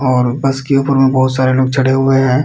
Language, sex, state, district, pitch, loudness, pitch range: Hindi, male, Bihar, Kishanganj, 130 Hz, -13 LUFS, 130-135 Hz